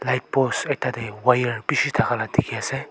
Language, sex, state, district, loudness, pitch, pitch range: Nagamese, male, Nagaland, Kohima, -22 LUFS, 125 Hz, 120-135 Hz